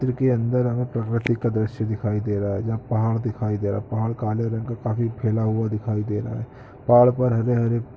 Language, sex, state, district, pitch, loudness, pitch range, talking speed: Hindi, male, Jharkhand, Sahebganj, 115 Hz, -23 LUFS, 110-120 Hz, 240 wpm